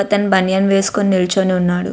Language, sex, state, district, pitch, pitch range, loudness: Telugu, female, Andhra Pradesh, Visakhapatnam, 190 Hz, 185-195 Hz, -15 LUFS